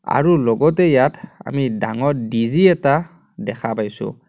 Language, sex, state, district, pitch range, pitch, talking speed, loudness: Assamese, male, Assam, Kamrup Metropolitan, 115-170 Hz, 140 Hz, 125 wpm, -17 LUFS